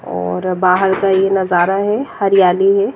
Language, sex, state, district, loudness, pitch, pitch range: Hindi, female, Himachal Pradesh, Shimla, -14 LUFS, 190 Hz, 180-195 Hz